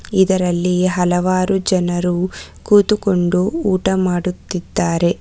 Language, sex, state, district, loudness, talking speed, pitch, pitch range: Kannada, female, Karnataka, Bangalore, -17 LUFS, 70 wpm, 185 Hz, 180-190 Hz